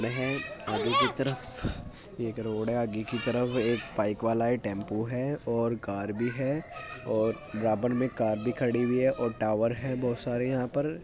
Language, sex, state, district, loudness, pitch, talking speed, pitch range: Hindi, male, Uttar Pradesh, Muzaffarnagar, -30 LUFS, 120 Hz, 185 wpm, 110-125 Hz